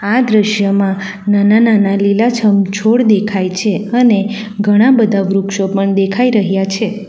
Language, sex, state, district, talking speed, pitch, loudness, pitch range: Gujarati, female, Gujarat, Valsad, 125 wpm, 205 Hz, -12 LUFS, 195-220 Hz